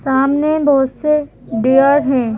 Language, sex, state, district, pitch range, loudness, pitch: Hindi, female, Madhya Pradesh, Bhopal, 265-295 Hz, -14 LUFS, 275 Hz